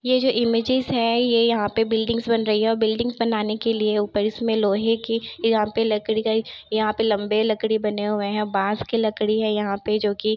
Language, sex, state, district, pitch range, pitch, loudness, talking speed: Hindi, female, Bihar, Begusarai, 210-230 Hz, 220 Hz, -22 LUFS, 235 wpm